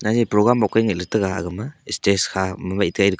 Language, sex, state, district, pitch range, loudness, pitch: Wancho, male, Arunachal Pradesh, Longding, 95-110 Hz, -20 LUFS, 105 Hz